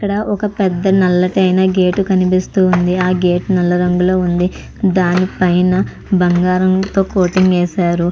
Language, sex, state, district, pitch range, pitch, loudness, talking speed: Telugu, female, Andhra Pradesh, Chittoor, 180-190 Hz, 185 Hz, -14 LUFS, 110 wpm